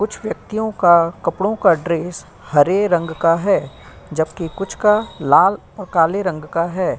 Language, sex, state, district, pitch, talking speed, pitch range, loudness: Hindi, female, Uttar Pradesh, Jyotiba Phule Nagar, 175 Hz, 155 wpm, 165-200 Hz, -17 LUFS